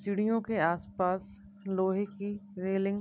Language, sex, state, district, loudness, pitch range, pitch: Hindi, female, Uttar Pradesh, Deoria, -32 LUFS, 190-205 Hz, 200 Hz